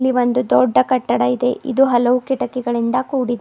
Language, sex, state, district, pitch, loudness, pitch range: Kannada, female, Karnataka, Bidar, 245 Hz, -17 LUFS, 230-255 Hz